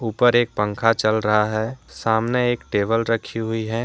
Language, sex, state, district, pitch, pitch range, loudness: Hindi, male, Jharkhand, Deoghar, 115 Hz, 110-120 Hz, -21 LUFS